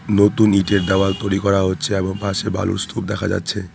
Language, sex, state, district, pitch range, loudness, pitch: Bengali, male, West Bengal, Cooch Behar, 95-105 Hz, -18 LUFS, 100 Hz